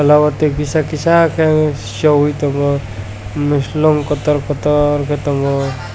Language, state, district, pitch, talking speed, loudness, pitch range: Kokborok, Tripura, West Tripura, 145 Hz, 130 wpm, -15 LUFS, 140-150 Hz